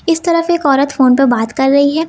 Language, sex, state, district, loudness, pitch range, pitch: Hindi, female, Uttar Pradesh, Lucknow, -12 LUFS, 265-330 Hz, 280 Hz